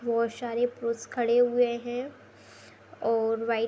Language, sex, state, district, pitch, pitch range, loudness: Hindi, female, Uttar Pradesh, Deoria, 235 Hz, 230-245 Hz, -28 LUFS